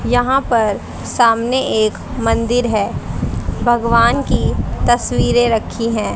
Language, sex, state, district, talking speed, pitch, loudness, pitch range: Hindi, female, Haryana, Charkhi Dadri, 105 wpm, 235 Hz, -16 LUFS, 225-240 Hz